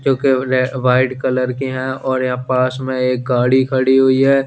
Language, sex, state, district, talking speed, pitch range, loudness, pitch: Hindi, male, Chandigarh, Chandigarh, 200 wpm, 125-130 Hz, -16 LUFS, 130 Hz